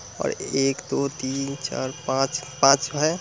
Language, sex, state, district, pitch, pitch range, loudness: Hindi, male, Bihar, Muzaffarpur, 135 Hz, 135-140 Hz, -24 LUFS